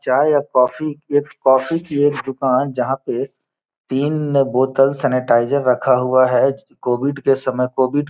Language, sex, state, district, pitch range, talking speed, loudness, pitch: Hindi, male, Bihar, Gopalganj, 130-145 Hz, 155 wpm, -17 LUFS, 135 Hz